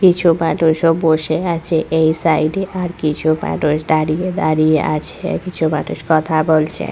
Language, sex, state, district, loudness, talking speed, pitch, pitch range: Bengali, female, West Bengal, Purulia, -16 LUFS, 145 wpm, 160 Hz, 155-170 Hz